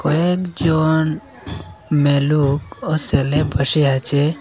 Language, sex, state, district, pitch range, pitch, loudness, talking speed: Bengali, male, Assam, Hailakandi, 140-155 Hz, 150 Hz, -17 LUFS, 80 wpm